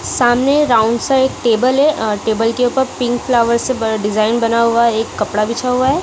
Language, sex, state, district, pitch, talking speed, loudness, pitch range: Hindi, female, Punjab, Kapurthala, 235 Hz, 200 wpm, -15 LUFS, 225-255 Hz